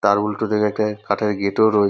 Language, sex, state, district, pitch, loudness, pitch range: Bengali, male, West Bengal, North 24 Parganas, 105 Hz, -20 LUFS, 100-105 Hz